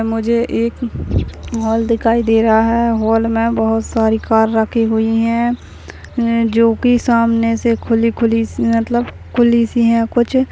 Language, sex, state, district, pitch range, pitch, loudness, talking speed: Hindi, female, Maharashtra, Aurangabad, 225-235 Hz, 230 Hz, -15 LUFS, 155 wpm